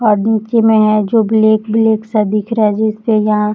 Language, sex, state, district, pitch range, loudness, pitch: Hindi, female, Bihar, Jahanabad, 215-220 Hz, -13 LUFS, 215 Hz